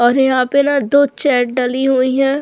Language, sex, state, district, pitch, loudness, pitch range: Hindi, female, Goa, North and South Goa, 265 Hz, -14 LUFS, 250-280 Hz